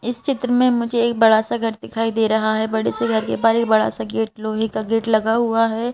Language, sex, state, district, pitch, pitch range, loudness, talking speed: Hindi, female, Madhya Pradesh, Bhopal, 225 Hz, 220-235 Hz, -19 LUFS, 275 wpm